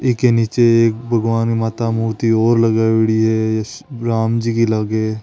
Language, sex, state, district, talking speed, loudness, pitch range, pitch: Marwari, male, Rajasthan, Nagaur, 150 wpm, -16 LUFS, 110-115 Hz, 115 Hz